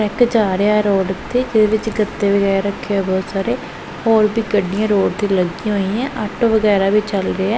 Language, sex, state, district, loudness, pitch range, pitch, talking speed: Punjabi, female, Punjab, Pathankot, -17 LUFS, 195-220 Hz, 210 Hz, 200 wpm